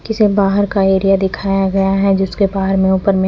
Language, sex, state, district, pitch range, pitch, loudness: Hindi, female, Chandigarh, Chandigarh, 190-200 Hz, 195 Hz, -14 LUFS